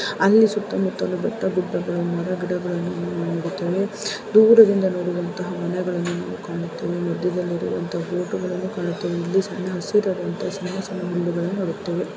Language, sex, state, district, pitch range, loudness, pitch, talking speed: Kannada, female, Karnataka, Dharwad, 175-190 Hz, -22 LUFS, 180 Hz, 120 wpm